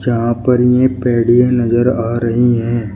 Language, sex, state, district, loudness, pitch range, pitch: Hindi, male, Uttar Pradesh, Shamli, -13 LUFS, 115-125 Hz, 120 Hz